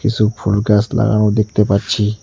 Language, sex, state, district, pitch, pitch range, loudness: Bengali, male, West Bengal, Cooch Behar, 105 Hz, 105-110 Hz, -15 LUFS